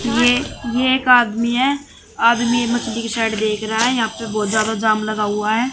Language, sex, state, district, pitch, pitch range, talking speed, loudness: Hindi, male, Haryana, Jhajjar, 230 Hz, 220-245 Hz, 210 wpm, -17 LUFS